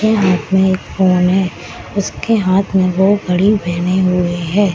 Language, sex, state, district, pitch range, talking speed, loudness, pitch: Hindi, female, Bihar, Samastipur, 180-195 Hz, 175 wpm, -14 LUFS, 185 Hz